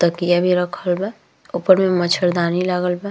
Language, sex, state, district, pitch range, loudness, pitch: Bhojpuri, female, Uttar Pradesh, Ghazipur, 175-185 Hz, -18 LUFS, 180 Hz